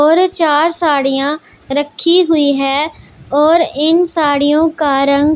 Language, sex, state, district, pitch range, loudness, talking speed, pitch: Hindi, female, Punjab, Pathankot, 285-325 Hz, -13 LUFS, 125 wpm, 300 Hz